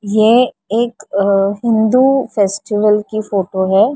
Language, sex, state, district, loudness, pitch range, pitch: Hindi, female, Maharashtra, Mumbai Suburban, -14 LUFS, 200-235 Hz, 210 Hz